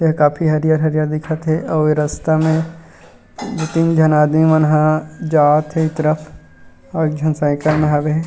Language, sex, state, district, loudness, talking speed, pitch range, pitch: Chhattisgarhi, male, Chhattisgarh, Rajnandgaon, -16 LUFS, 180 wpm, 150-160 Hz, 155 Hz